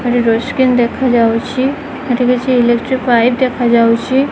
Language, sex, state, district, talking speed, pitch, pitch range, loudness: Odia, female, Odisha, Khordha, 125 wpm, 250 Hz, 235-260 Hz, -13 LUFS